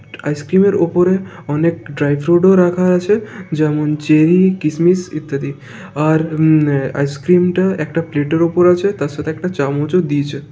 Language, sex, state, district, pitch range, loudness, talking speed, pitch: Bengali, male, West Bengal, Kolkata, 145-180 Hz, -15 LUFS, 165 wpm, 160 Hz